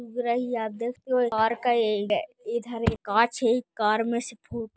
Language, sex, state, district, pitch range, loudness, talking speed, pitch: Hindi, female, Maharashtra, Pune, 225-245 Hz, -26 LUFS, 225 wpm, 235 Hz